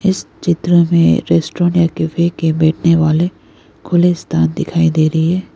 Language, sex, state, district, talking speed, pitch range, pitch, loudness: Hindi, female, Arunachal Pradesh, Lower Dibang Valley, 140 wpm, 160-175 Hz, 165 Hz, -14 LUFS